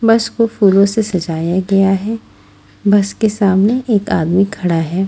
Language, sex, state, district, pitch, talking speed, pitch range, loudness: Hindi, female, Haryana, Rohtak, 195 Hz, 165 wpm, 180-215 Hz, -14 LUFS